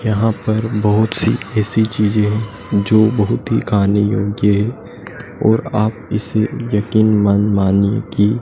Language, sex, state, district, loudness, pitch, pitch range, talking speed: Hindi, male, Madhya Pradesh, Dhar, -16 LUFS, 105 Hz, 100-110 Hz, 140 wpm